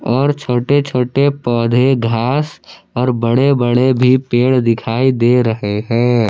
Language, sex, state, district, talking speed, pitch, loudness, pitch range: Hindi, male, Jharkhand, Palamu, 135 wpm, 125 Hz, -14 LUFS, 120-130 Hz